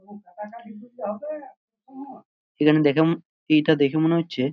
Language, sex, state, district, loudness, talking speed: Bengali, male, West Bengal, Purulia, -22 LUFS, 95 wpm